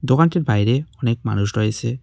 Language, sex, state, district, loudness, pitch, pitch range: Bengali, male, West Bengal, Cooch Behar, -19 LUFS, 120 Hz, 110-130 Hz